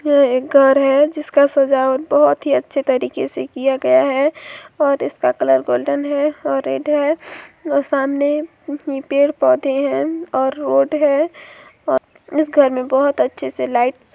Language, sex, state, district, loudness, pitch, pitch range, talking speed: Hindi, female, Chhattisgarh, Balrampur, -17 LUFS, 285 Hz, 270-295 Hz, 125 wpm